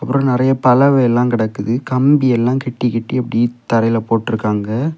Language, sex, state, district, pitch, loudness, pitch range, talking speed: Tamil, male, Tamil Nadu, Kanyakumari, 120 Hz, -15 LUFS, 115-130 Hz, 120 wpm